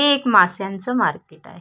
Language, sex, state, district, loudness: Marathi, female, Maharashtra, Solapur, -18 LUFS